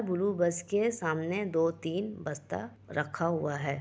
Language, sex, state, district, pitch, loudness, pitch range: Hindi, female, Bihar, Kishanganj, 170 Hz, -32 LUFS, 160-195 Hz